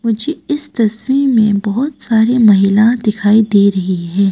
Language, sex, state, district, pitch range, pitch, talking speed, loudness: Hindi, female, Arunachal Pradesh, Papum Pare, 200-245 Hz, 220 Hz, 155 wpm, -13 LUFS